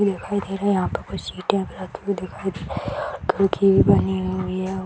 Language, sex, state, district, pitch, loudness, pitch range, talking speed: Hindi, female, Bihar, Purnia, 190 Hz, -23 LUFS, 185-200 Hz, 195 wpm